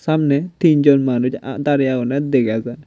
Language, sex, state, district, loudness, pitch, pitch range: Chakma, male, Tripura, Unakoti, -17 LUFS, 140 Hz, 130-145 Hz